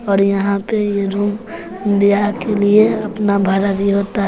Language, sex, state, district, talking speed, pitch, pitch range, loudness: Hindi, female, Bihar, West Champaran, 170 wpm, 200 Hz, 200-210 Hz, -16 LUFS